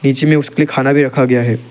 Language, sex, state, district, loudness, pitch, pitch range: Hindi, male, Arunachal Pradesh, Lower Dibang Valley, -13 LUFS, 135 Hz, 125-145 Hz